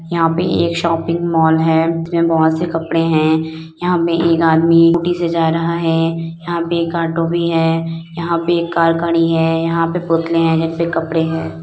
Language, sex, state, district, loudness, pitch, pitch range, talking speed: Hindi, female, Bihar, Madhepura, -15 LUFS, 165 Hz, 165-170 Hz, 200 wpm